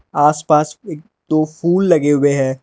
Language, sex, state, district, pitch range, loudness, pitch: Hindi, male, Arunachal Pradesh, Lower Dibang Valley, 145-165 Hz, -15 LUFS, 150 Hz